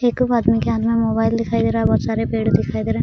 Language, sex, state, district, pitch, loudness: Hindi, female, Bihar, Araria, 155 Hz, -18 LUFS